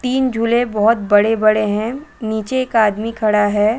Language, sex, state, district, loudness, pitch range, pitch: Hindi, female, Chhattisgarh, Balrampur, -16 LUFS, 215-240 Hz, 220 Hz